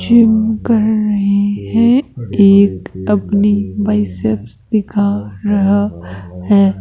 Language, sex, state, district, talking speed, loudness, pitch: Hindi, female, Rajasthan, Jaipur, 90 wpm, -14 LUFS, 195 Hz